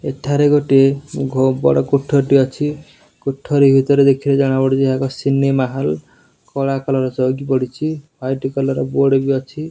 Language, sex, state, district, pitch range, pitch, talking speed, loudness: Odia, male, Odisha, Nuapada, 130-140 Hz, 135 Hz, 155 wpm, -16 LUFS